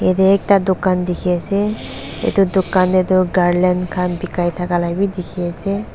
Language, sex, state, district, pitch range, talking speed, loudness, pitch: Nagamese, female, Nagaland, Dimapur, 180-195 Hz, 160 wpm, -17 LUFS, 185 Hz